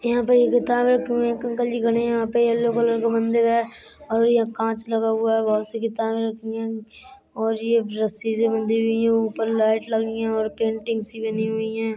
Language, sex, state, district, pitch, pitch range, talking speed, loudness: Bundeli, female, Uttar Pradesh, Budaun, 225 Hz, 225-235 Hz, 230 wpm, -22 LUFS